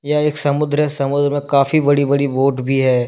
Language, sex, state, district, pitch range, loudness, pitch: Hindi, male, Jharkhand, Deoghar, 135-145 Hz, -16 LUFS, 140 Hz